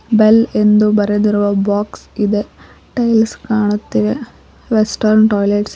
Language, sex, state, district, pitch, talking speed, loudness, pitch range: Kannada, female, Karnataka, Koppal, 210 Hz, 115 wpm, -14 LUFS, 205-220 Hz